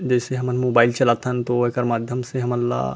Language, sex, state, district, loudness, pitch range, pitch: Chhattisgarhi, male, Chhattisgarh, Rajnandgaon, -21 LUFS, 120-125 Hz, 125 Hz